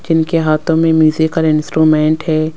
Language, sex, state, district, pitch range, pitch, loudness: Hindi, female, Rajasthan, Jaipur, 155-160 Hz, 160 Hz, -13 LUFS